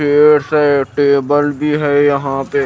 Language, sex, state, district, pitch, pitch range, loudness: Hindi, male, Himachal Pradesh, Shimla, 145 Hz, 140-145 Hz, -13 LUFS